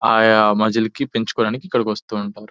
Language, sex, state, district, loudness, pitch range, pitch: Telugu, male, Telangana, Nalgonda, -18 LUFS, 105-115 Hz, 110 Hz